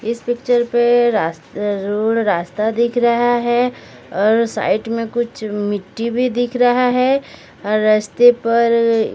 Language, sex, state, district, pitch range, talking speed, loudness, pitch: Hindi, female, Odisha, Sambalpur, 215-240 Hz, 140 wpm, -17 LUFS, 230 Hz